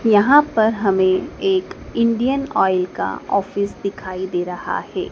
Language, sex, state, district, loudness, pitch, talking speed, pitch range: Hindi, female, Madhya Pradesh, Dhar, -19 LUFS, 205 Hz, 140 wpm, 190-260 Hz